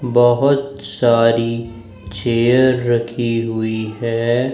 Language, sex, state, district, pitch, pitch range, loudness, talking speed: Hindi, male, Madhya Pradesh, Dhar, 115 Hz, 115-125 Hz, -17 LUFS, 80 wpm